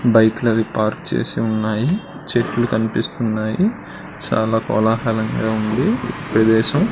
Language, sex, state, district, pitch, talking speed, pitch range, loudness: Telugu, male, Andhra Pradesh, Srikakulam, 110 Hz, 95 wpm, 110-120 Hz, -19 LUFS